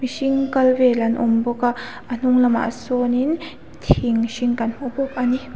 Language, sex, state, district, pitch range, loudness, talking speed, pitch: Mizo, female, Mizoram, Aizawl, 240-260 Hz, -20 LUFS, 185 wpm, 250 Hz